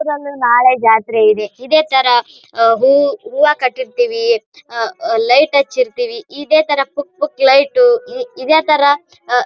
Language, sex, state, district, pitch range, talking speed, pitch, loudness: Kannada, male, Karnataka, Bijapur, 245-345 Hz, 115 wpm, 285 Hz, -13 LUFS